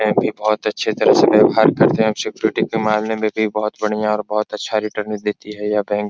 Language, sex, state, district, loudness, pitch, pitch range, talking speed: Hindi, male, Bihar, Supaul, -18 LUFS, 105 Hz, 105-110 Hz, 245 wpm